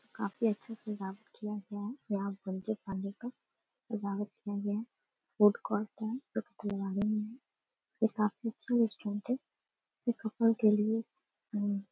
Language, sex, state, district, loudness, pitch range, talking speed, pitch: Hindi, female, Bihar, Darbhanga, -35 LUFS, 205-230 Hz, 100 wpm, 215 Hz